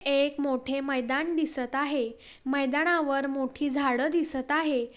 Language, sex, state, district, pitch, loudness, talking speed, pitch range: Marathi, female, Maharashtra, Pune, 275 Hz, -28 LUFS, 135 wpm, 265-295 Hz